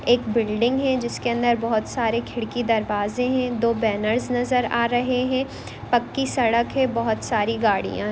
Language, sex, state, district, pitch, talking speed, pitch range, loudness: Hindi, female, Jharkhand, Jamtara, 235 Hz, 170 wpm, 225-250 Hz, -22 LUFS